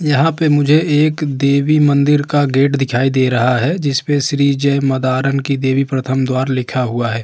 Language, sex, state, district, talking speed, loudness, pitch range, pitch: Hindi, male, Uttar Pradesh, Hamirpur, 190 wpm, -15 LUFS, 130-145 Hz, 140 Hz